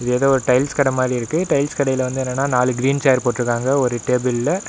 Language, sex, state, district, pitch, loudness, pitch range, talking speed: Tamil, male, Tamil Nadu, Namakkal, 130 Hz, -18 LUFS, 125-135 Hz, 205 wpm